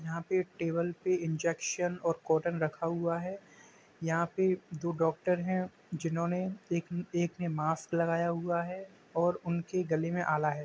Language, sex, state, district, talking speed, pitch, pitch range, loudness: Hindi, male, Uttar Pradesh, Jalaun, 170 wpm, 170 Hz, 165-180 Hz, -33 LUFS